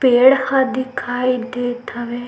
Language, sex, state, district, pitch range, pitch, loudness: Chhattisgarhi, female, Chhattisgarh, Sukma, 245-260 Hz, 250 Hz, -18 LUFS